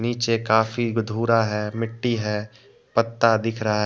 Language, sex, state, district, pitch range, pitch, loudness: Hindi, male, Jharkhand, Deoghar, 110-115 Hz, 115 Hz, -23 LUFS